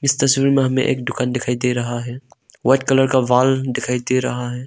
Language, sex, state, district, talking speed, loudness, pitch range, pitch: Hindi, male, Arunachal Pradesh, Longding, 230 wpm, -18 LUFS, 125-135 Hz, 130 Hz